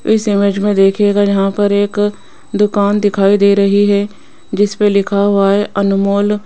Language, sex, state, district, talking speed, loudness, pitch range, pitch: Hindi, female, Rajasthan, Jaipur, 165 wpm, -13 LUFS, 200-205 Hz, 205 Hz